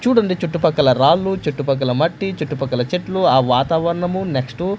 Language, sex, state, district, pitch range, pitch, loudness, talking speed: Telugu, male, Andhra Pradesh, Manyam, 135-185 Hz, 165 Hz, -18 LUFS, 140 wpm